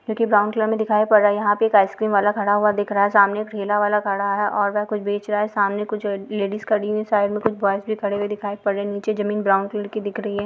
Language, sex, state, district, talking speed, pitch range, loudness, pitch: Hindi, female, Bihar, Jahanabad, 330 wpm, 205-215 Hz, -20 LUFS, 205 Hz